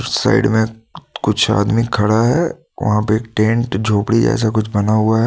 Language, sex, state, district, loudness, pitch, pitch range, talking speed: Hindi, male, Jharkhand, Deoghar, -16 LUFS, 110 Hz, 105-115 Hz, 195 wpm